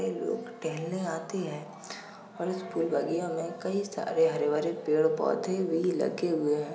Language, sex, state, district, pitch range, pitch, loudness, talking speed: Hindi, male, Uttar Pradesh, Jalaun, 160-190 Hz, 170 Hz, -30 LUFS, 180 wpm